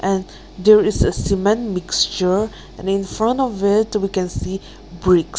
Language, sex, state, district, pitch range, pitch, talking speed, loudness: English, female, Nagaland, Kohima, 185-210 Hz, 195 Hz, 165 wpm, -18 LUFS